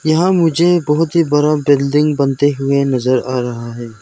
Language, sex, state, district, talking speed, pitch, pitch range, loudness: Hindi, male, Arunachal Pradesh, Lower Dibang Valley, 180 wpm, 145 Hz, 130-155 Hz, -14 LUFS